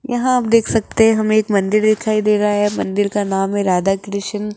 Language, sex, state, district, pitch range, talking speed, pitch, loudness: Hindi, female, Rajasthan, Jaipur, 200-220 Hz, 235 wpm, 210 Hz, -16 LUFS